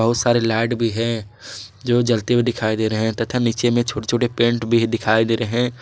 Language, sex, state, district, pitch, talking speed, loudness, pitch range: Hindi, male, Jharkhand, Garhwa, 115 Hz, 235 wpm, -19 LUFS, 110-120 Hz